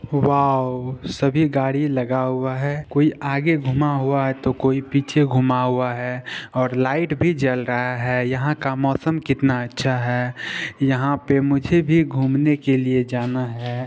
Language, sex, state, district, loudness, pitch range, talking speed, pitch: Hindi, male, Bihar, Purnia, -20 LUFS, 125-140 Hz, 165 wpm, 135 Hz